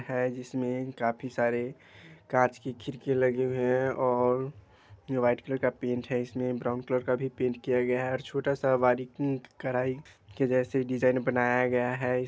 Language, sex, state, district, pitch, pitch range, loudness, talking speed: Hindi, male, Bihar, Muzaffarpur, 125 Hz, 125-130 Hz, -29 LUFS, 175 wpm